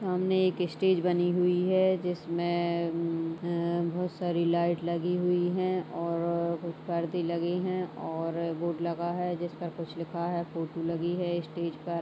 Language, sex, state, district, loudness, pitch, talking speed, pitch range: Hindi, female, Chhattisgarh, Kabirdham, -30 LUFS, 170 Hz, 160 wpm, 170-180 Hz